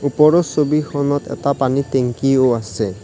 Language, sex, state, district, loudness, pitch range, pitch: Assamese, male, Assam, Kamrup Metropolitan, -17 LUFS, 125-150 Hz, 140 Hz